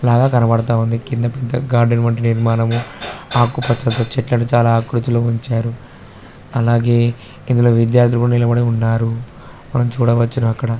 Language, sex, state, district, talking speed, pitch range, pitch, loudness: Telugu, male, Telangana, Karimnagar, 115 wpm, 115-120 Hz, 120 Hz, -16 LUFS